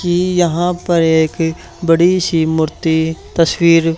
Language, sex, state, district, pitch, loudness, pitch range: Hindi, male, Haryana, Charkhi Dadri, 165 Hz, -14 LUFS, 160-175 Hz